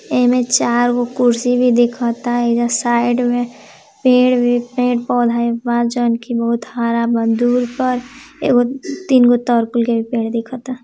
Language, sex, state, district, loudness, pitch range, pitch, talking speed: Hindi, female, Bihar, Gopalganj, -16 LUFS, 235-250 Hz, 245 Hz, 160 wpm